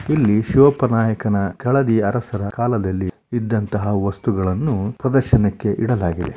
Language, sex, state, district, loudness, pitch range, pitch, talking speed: Kannada, male, Karnataka, Shimoga, -19 LUFS, 100-120 Hz, 110 Hz, 85 wpm